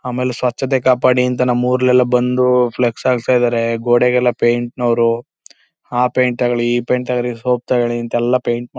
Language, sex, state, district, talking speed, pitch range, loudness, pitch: Kannada, male, Karnataka, Chamarajanagar, 150 wpm, 120-125 Hz, -16 LUFS, 125 Hz